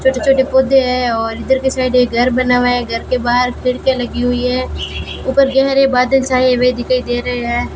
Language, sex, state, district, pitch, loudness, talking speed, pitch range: Hindi, female, Rajasthan, Bikaner, 250 Hz, -14 LUFS, 225 wpm, 245-265 Hz